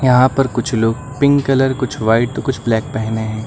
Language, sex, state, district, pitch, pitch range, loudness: Hindi, male, Uttar Pradesh, Lucknow, 125 Hz, 115-135 Hz, -16 LUFS